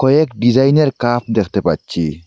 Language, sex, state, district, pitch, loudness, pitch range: Bengali, male, Assam, Hailakandi, 120 Hz, -15 LUFS, 100-135 Hz